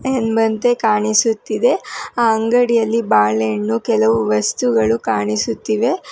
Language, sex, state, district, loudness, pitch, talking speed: Kannada, female, Karnataka, Bangalore, -16 LUFS, 220 Hz, 90 wpm